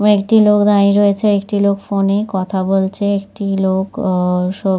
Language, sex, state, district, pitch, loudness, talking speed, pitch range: Bengali, female, West Bengal, Dakshin Dinajpur, 200 Hz, -15 LUFS, 210 wpm, 190-205 Hz